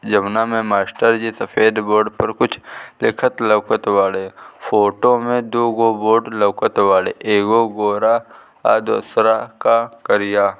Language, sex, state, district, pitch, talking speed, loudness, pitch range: Bhojpuri, male, Bihar, Gopalganj, 110 Hz, 125 wpm, -17 LUFS, 105-115 Hz